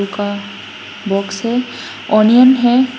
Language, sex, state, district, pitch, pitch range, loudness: Hindi, female, Assam, Hailakandi, 220 Hz, 200-250 Hz, -13 LUFS